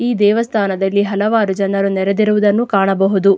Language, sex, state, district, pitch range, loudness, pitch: Kannada, female, Karnataka, Dakshina Kannada, 195-215 Hz, -15 LUFS, 200 Hz